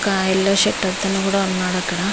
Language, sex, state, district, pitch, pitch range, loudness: Telugu, female, Andhra Pradesh, Visakhapatnam, 190 Hz, 185-195 Hz, -18 LUFS